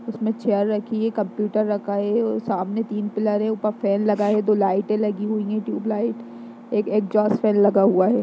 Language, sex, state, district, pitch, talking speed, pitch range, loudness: Hindi, female, Bihar, Darbhanga, 210 Hz, 220 wpm, 200-215 Hz, -22 LUFS